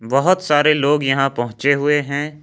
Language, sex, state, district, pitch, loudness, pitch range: Hindi, male, Jharkhand, Ranchi, 145 Hz, -17 LUFS, 135-150 Hz